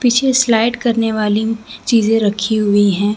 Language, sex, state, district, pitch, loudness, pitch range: Hindi, female, Jharkhand, Deoghar, 225 Hz, -15 LUFS, 210-235 Hz